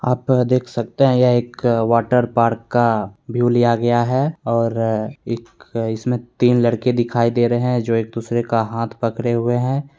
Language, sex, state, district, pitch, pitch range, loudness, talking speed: Hindi, male, Bihar, Begusarai, 120 Hz, 115-125 Hz, -18 LUFS, 180 wpm